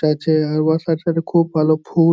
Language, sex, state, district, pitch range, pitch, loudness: Bengali, male, West Bengal, Jhargram, 155-165 Hz, 160 Hz, -17 LUFS